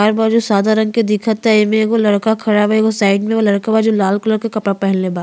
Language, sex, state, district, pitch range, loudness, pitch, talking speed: Bhojpuri, female, Uttar Pradesh, Ghazipur, 205-220 Hz, -14 LUFS, 215 Hz, 240 wpm